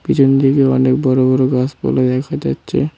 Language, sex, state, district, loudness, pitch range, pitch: Bengali, male, West Bengal, Cooch Behar, -14 LUFS, 130-135 Hz, 130 Hz